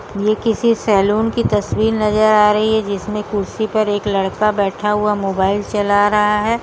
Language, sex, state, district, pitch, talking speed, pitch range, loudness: Hindi, female, Uttar Pradesh, Budaun, 210 Hz, 180 wpm, 205-215 Hz, -16 LUFS